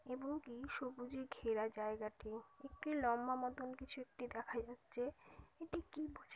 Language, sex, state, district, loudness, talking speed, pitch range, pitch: Bengali, female, West Bengal, Kolkata, -45 LUFS, 130 wpm, 235-275 Hz, 255 Hz